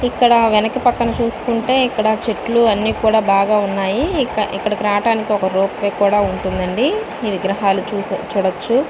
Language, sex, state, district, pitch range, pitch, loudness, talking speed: Telugu, female, Andhra Pradesh, Visakhapatnam, 200-235 Hz, 215 Hz, -17 LUFS, 140 wpm